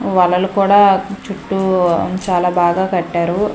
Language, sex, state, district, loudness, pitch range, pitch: Telugu, female, Andhra Pradesh, Manyam, -15 LUFS, 180-195 Hz, 190 Hz